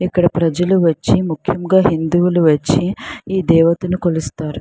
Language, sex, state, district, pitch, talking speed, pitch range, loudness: Telugu, female, Andhra Pradesh, Srikakulam, 170 Hz, 115 wpm, 160-180 Hz, -15 LUFS